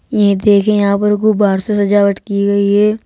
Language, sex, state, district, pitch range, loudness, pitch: Hindi, female, Uttar Pradesh, Saharanpur, 200-210 Hz, -13 LUFS, 205 Hz